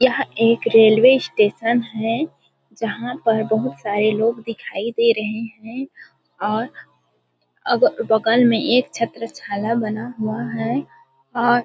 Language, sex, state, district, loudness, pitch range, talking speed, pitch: Hindi, female, Chhattisgarh, Balrampur, -19 LUFS, 220-240 Hz, 125 wpm, 230 Hz